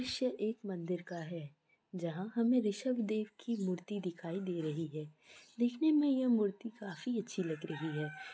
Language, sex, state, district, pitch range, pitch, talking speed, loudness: Hindi, female, Bihar, Gaya, 170-235 Hz, 195 Hz, 175 wpm, -37 LUFS